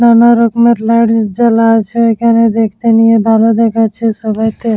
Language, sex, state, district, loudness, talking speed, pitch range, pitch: Bengali, female, West Bengal, Dakshin Dinajpur, -10 LUFS, 140 wpm, 225-230 Hz, 225 Hz